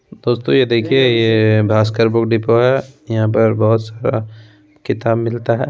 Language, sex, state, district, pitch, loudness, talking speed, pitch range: Hindi, male, Bihar, Begusarai, 115 Hz, -15 LUFS, 160 wpm, 110-120 Hz